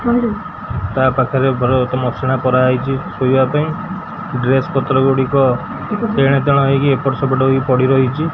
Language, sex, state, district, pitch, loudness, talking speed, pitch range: Odia, female, Odisha, Khordha, 135 Hz, -15 LUFS, 130 wpm, 130-150 Hz